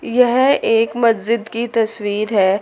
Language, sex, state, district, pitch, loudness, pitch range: Hindi, female, Chandigarh, Chandigarh, 230 Hz, -16 LUFS, 215-235 Hz